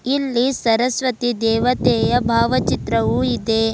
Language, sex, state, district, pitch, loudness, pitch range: Kannada, female, Karnataka, Bidar, 245 Hz, -18 LUFS, 225-255 Hz